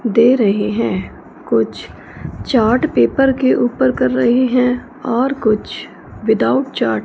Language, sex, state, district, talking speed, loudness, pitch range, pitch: Hindi, female, Punjab, Fazilka, 135 wpm, -15 LUFS, 205-255 Hz, 235 Hz